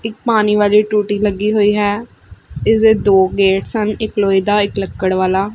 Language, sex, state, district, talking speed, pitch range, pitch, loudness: Punjabi, female, Punjab, Fazilka, 185 wpm, 195-215 Hz, 205 Hz, -14 LUFS